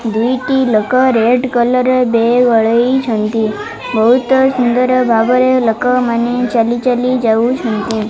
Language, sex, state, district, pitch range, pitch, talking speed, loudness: Odia, female, Odisha, Malkangiri, 225-255 Hz, 245 Hz, 105 wpm, -13 LUFS